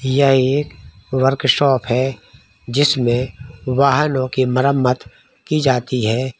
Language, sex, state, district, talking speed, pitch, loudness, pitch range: Hindi, male, Bihar, East Champaran, 115 wpm, 130 Hz, -17 LUFS, 125-140 Hz